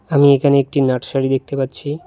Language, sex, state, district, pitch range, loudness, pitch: Bengali, male, West Bengal, Cooch Behar, 135-140 Hz, -16 LUFS, 140 Hz